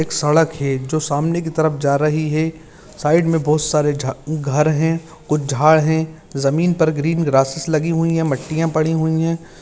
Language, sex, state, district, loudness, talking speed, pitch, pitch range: Hindi, male, Chhattisgarh, Kabirdham, -18 LUFS, 185 wpm, 155 Hz, 150-160 Hz